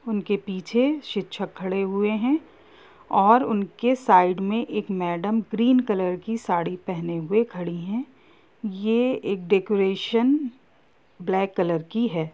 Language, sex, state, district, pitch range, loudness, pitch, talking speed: Hindi, female, Jharkhand, Sahebganj, 185-230 Hz, -24 LUFS, 205 Hz, 130 wpm